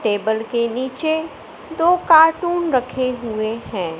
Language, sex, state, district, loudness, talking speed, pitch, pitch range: Hindi, male, Madhya Pradesh, Katni, -18 LUFS, 120 wpm, 255 Hz, 220-320 Hz